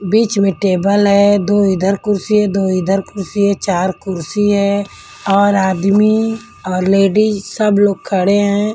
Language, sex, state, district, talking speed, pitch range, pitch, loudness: Hindi, female, Delhi, New Delhi, 160 wpm, 195-205 Hz, 200 Hz, -14 LUFS